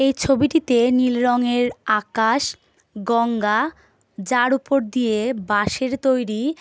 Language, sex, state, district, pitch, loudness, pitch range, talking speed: Bengali, female, West Bengal, Jhargram, 245 Hz, -20 LUFS, 225-270 Hz, 100 wpm